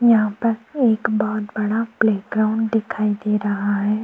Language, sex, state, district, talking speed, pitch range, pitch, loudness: Hindi, female, Chhattisgarh, Kabirdham, 150 wpm, 210-225 Hz, 215 Hz, -20 LUFS